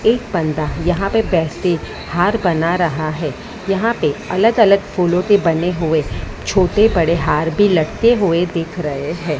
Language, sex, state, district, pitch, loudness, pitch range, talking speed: Hindi, female, Maharashtra, Mumbai Suburban, 175 Hz, -16 LUFS, 160-200 Hz, 145 wpm